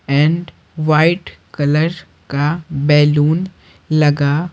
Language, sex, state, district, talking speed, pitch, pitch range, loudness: Hindi, male, Bihar, Patna, 65 wpm, 155 Hz, 145-165 Hz, -16 LUFS